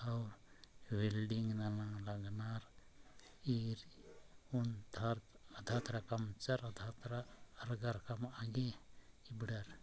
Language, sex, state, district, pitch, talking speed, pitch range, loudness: Sadri, male, Chhattisgarh, Jashpur, 110 Hz, 65 wpm, 105-120 Hz, -44 LUFS